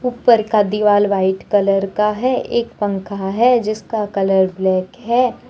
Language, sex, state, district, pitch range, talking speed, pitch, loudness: Hindi, female, Jharkhand, Deoghar, 195-235 Hz, 155 wpm, 210 Hz, -17 LUFS